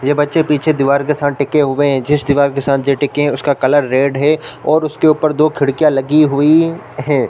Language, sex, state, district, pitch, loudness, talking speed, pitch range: Hindi, male, Chhattisgarh, Bilaspur, 145 Hz, -14 LUFS, 230 wpm, 140-155 Hz